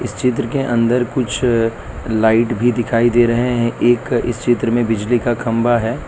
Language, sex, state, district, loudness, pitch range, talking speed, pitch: Hindi, male, Gujarat, Valsad, -16 LUFS, 115-120 Hz, 180 wpm, 120 Hz